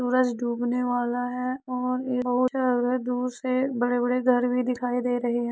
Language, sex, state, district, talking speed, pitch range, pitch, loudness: Hindi, female, Uttar Pradesh, Muzaffarnagar, 150 wpm, 245-255 Hz, 250 Hz, -26 LUFS